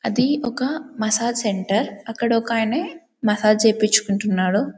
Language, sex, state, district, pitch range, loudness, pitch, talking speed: Telugu, female, Telangana, Karimnagar, 210-245 Hz, -20 LUFS, 225 Hz, 115 wpm